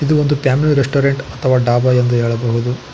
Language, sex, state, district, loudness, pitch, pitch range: Kannada, male, Karnataka, Koppal, -15 LUFS, 130 Hz, 120-140 Hz